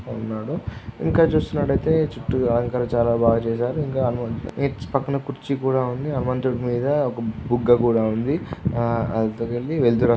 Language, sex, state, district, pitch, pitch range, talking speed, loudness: Telugu, male, Andhra Pradesh, Guntur, 125 Hz, 115-140 Hz, 130 wpm, -22 LUFS